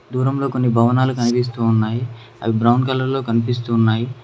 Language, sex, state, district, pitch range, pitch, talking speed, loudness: Telugu, male, Telangana, Mahabubabad, 115-130 Hz, 120 Hz, 155 wpm, -18 LUFS